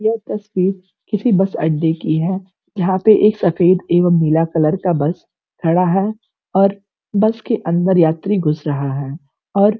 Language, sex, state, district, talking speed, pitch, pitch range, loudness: Hindi, female, Uttar Pradesh, Gorakhpur, 170 wpm, 180 Hz, 165-200 Hz, -16 LUFS